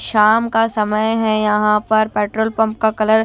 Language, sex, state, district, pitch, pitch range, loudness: Hindi, female, Chhattisgarh, Raipur, 220 Hz, 210-220 Hz, -16 LUFS